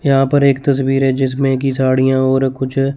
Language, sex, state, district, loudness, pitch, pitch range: Hindi, male, Chandigarh, Chandigarh, -15 LUFS, 135 Hz, 130-135 Hz